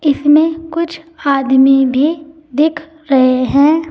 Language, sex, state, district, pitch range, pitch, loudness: Hindi, female, Uttar Pradesh, Saharanpur, 270-320 Hz, 300 Hz, -13 LUFS